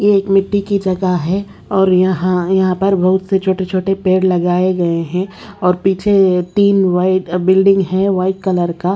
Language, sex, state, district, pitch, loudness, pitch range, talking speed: Hindi, female, Odisha, Sambalpur, 185 Hz, -14 LUFS, 180-195 Hz, 180 wpm